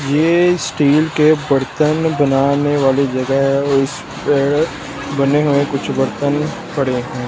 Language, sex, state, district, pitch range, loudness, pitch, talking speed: Hindi, male, Delhi, New Delhi, 135-150 Hz, -16 LUFS, 140 Hz, 140 wpm